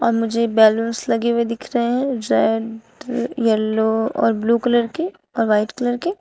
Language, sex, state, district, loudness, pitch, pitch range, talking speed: Hindi, female, Uttar Pradesh, Shamli, -19 LUFS, 230 Hz, 225-245 Hz, 165 wpm